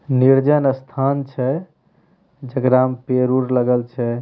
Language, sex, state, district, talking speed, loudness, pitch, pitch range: Hindi, male, Bihar, Begusarai, 115 wpm, -18 LUFS, 130 Hz, 130-140 Hz